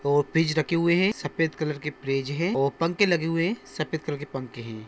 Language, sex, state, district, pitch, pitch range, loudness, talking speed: Hindi, male, Andhra Pradesh, Anantapur, 155 Hz, 140-165 Hz, -26 LUFS, 220 wpm